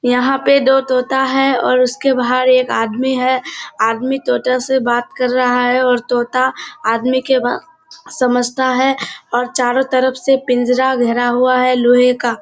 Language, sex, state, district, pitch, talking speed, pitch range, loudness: Hindi, female, Bihar, Kishanganj, 255 Hz, 170 wpm, 245-265 Hz, -15 LUFS